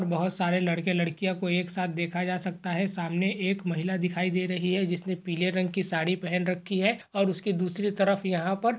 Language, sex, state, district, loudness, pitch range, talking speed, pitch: Hindi, male, Uttar Pradesh, Jalaun, -28 LUFS, 180-190 Hz, 225 wpm, 185 Hz